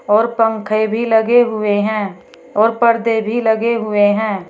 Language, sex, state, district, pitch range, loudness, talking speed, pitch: Hindi, female, Uttar Pradesh, Shamli, 210-230 Hz, -15 LUFS, 160 wpm, 220 Hz